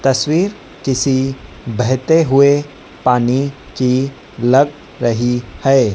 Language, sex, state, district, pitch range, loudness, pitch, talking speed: Hindi, female, Madhya Pradesh, Dhar, 125-140 Hz, -16 LUFS, 130 Hz, 90 wpm